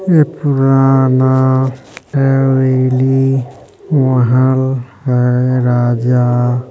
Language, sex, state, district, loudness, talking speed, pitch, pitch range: Hindi, male, Chhattisgarh, Balrampur, -13 LUFS, 65 wpm, 130 Hz, 125-135 Hz